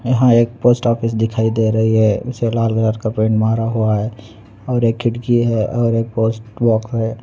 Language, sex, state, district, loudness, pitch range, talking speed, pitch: Hindi, male, Andhra Pradesh, Anantapur, -17 LUFS, 110-120 Hz, 205 wpm, 115 Hz